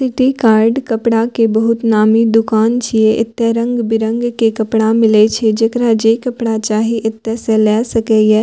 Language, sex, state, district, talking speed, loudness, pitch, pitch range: Maithili, female, Bihar, Purnia, 165 wpm, -13 LUFS, 225 Hz, 220-230 Hz